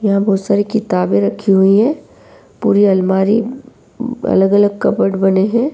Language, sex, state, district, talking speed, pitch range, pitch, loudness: Hindi, female, Uttar Pradesh, Varanasi, 135 wpm, 190-220 Hz, 200 Hz, -14 LUFS